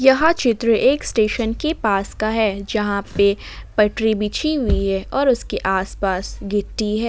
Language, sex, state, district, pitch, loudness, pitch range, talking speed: Hindi, female, Jharkhand, Ranchi, 215 Hz, -19 LUFS, 200-240 Hz, 160 wpm